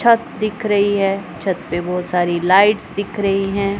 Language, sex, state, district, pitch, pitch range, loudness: Hindi, male, Punjab, Pathankot, 195 Hz, 180-205 Hz, -18 LUFS